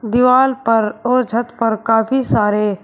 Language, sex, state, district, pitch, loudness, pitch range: Hindi, male, Uttar Pradesh, Shamli, 230 Hz, -15 LUFS, 220-250 Hz